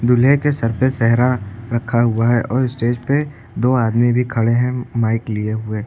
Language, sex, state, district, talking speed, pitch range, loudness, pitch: Hindi, male, Uttar Pradesh, Lucknow, 195 wpm, 115-125 Hz, -17 LUFS, 120 Hz